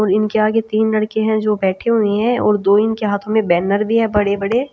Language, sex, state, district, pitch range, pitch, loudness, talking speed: Hindi, female, Chhattisgarh, Raipur, 205-220 Hz, 215 Hz, -16 LUFS, 255 wpm